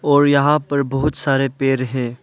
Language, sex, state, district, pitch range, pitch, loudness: Hindi, male, Arunachal Pradesh, Lower Dibang Valley, 135-145 Hz, 135 Hz, -17 LUFS